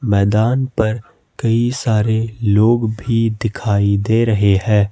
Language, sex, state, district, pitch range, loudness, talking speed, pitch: Hindi, male, Jharkhand, Ranchi, 105-115 Hz, -16 LUFS, 120 wpm, 110 Hz